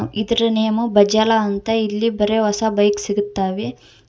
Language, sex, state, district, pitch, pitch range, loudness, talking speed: Kannada, female, Karnataka, Koppal, 210 Hz, 205-220 Hz, -18 LUFS, 130 wpm